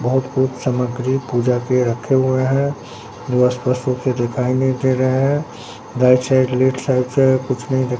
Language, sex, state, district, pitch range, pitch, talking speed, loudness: Hindi, male, Bihar, Katihar, 125-130 Hz, 130 Hz, 190 wpm, -18 LUFS